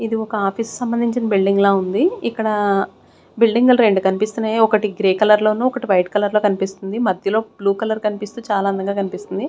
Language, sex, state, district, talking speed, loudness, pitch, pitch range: Telugu, female, Andhra Pradesh, Sri Satya Sai, 165 wpm, -18 LUFS, 210 Hz, 195-225 Hz